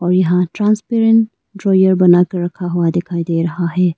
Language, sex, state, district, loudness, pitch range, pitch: Hindi, female, Arunachal Pradesh, Lower Dibang Valley, -15 LUFS, 175-195 Hz, 180 Hz